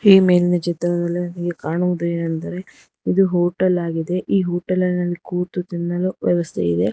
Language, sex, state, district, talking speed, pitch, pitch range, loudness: Kannada, female, Karnataka, Bangalore, 115 wpm, 175 Hz, 175-180 Hz, -20 LUFS